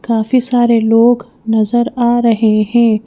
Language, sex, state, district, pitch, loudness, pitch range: Hindi, female, Madhya Pradesh, Bhopal, 235 Hz, -12 LUFS, 225-240 Hz